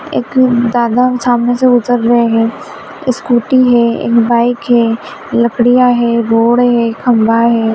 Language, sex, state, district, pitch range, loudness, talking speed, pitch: Hindi, female, Bihar, Vaishali, 235-245 Hz, -11 LUFS, 130 wpm, 240 Hz